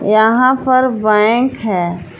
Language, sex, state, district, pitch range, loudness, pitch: Hindi, female, Jharkhand, Palamu, 210-255 Hz, -13 LUFS, 220 Hz